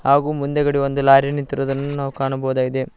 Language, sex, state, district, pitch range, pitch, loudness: Kannada, male, Karnataka, Koppal, 135-145 Hz, 140 Hz, -19 LUFS